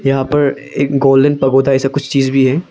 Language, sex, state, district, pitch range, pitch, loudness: Hindi, male, Arunachal Pradesh, Lower Dibang Valley, 135-140 Hz, 135 Hz, -13 LUFS